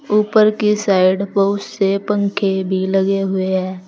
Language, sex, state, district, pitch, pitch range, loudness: Hindi, female, Uttar Pradesh, Saharanpur, 195 Hz, 190-210 Hz, -16 LUFS